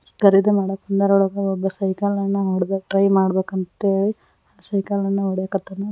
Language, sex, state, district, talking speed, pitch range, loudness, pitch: Kannada, female, Karnataka, Koppal, 120 wpm, 190-200 Hz, -20 LUFS, 195 Hz